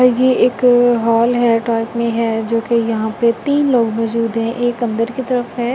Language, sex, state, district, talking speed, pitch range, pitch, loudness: Hindi, female, Delhi, New Delhi, 220 wpm, 230-245 Hz, 235 Hz, -16 LUFS